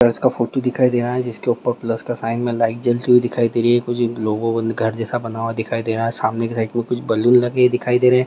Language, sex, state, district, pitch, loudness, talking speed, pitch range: Hindi, male, Bihar, Vaishali, 120 Hz, -19 LUFS, 320 wpm, 115-125 Hz